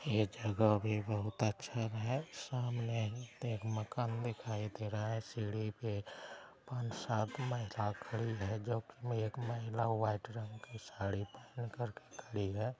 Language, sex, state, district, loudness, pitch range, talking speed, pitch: Hindi, male, Bihar, Araria, -39 LUFS, 105-120 Hz, 155 wpm, 110 Hz